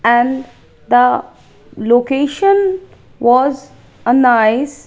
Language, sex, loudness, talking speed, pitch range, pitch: English, female, -14 LUFS, 85 wpm, 240-280 Hz, 255 Hz